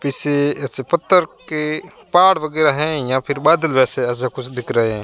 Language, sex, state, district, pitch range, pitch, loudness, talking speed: Hindi, male, Rajasthan, Barmer, 130-155 Hz, 145 Hz, -17 LUFS, 155 wpm